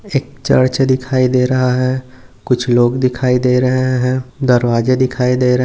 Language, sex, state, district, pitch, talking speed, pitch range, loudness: Hindi, male, Maharashtra, Nagpur, 130 Hz, 170 wpm, 125-130 Hz, -14 LUFS